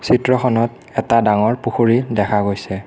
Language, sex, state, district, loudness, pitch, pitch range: Assamese, male, Assam, Kamrup Metropolitan, -17 LUFS, 115 Hz, 105-120 Hz